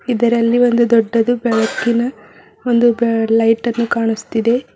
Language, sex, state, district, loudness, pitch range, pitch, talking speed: Kannada, female, Karnataka, Bidar, -15 LUFS, 225-240 Hz, 235 Hz, 115 wpm